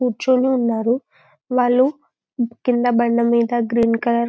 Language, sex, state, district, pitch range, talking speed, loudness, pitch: Telugu, female, Telangana, Karimnagar, 235-250 Hz, 125 wpm, -18 LUFS, 240 Hz